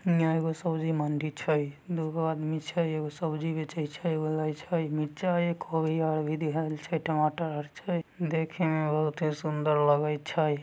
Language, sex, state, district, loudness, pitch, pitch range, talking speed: Magahi, male, Bihar, Samastipur, -30 LUFS, 155 Hz, 155-165 Hz, 175 wpm